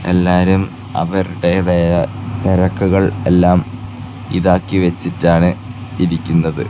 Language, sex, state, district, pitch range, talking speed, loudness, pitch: Malayalam, male, Kerala, Kasaragod, 90-100 Hz, 70 wpm, -15 LUFS, 90 Hz